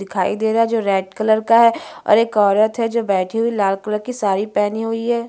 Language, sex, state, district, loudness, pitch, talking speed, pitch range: Hindi, female, Chhattisgarh, Bastar, -17 LUFS, 220 Hz, 270 wpm, 200-230 Hz